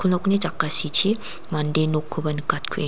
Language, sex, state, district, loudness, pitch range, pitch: Garo, female, Meghalaya, West Garo Hills, -19 LUFS, 155-185 Hz, 155 Hz